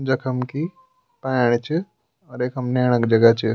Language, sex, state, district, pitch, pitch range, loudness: Garhwali, male, Uttarakhand, Tehri Garhwal, 125 Hz, 120-155 Hz, -21 LUFS